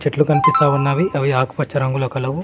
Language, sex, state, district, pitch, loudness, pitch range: Telugu, male, Telangana, Mahabubabad, 145 Hz, -17 LUFS, 135-150 Hz